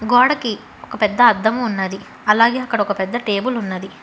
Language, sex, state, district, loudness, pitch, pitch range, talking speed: Telugu, female, Telangana, Hyderabad, -17 LUFS, 220 Hz, 200-245 Hz, 165 wpm